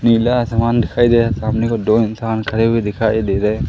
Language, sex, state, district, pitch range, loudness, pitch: Hindi, male, Madhya Pradesh, Umaria, 110-115 Hz, -16 LUFS, 115 Hz